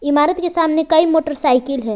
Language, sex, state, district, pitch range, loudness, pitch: Hindi, female, Jharkhand, Palamu, 285-325 Hz, -16 LUFS, 310 Hz